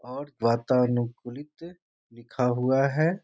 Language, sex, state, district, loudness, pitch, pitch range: Hindi, male, Bihar, Muzaffarpur, -25 LUFS, 130 Hz, 120-145 Hz